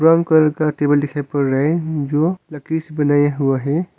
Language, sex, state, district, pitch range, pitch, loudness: Hindi, male, Arunachal Pradesh, Longding, 145-160 Hz, 150 Hz, -17 LUFS